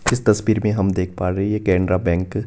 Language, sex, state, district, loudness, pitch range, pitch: Hindi, male, Himachal Pradesh, Shimla, -19 LUFS, 90-105 Hz, 100 Hz